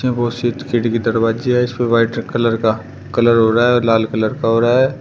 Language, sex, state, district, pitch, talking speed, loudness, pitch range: Hindi, male, Uttar Pradesh, Shamli, 115 Hz, 240 wpm, -16 LUFS, 115-120 Hz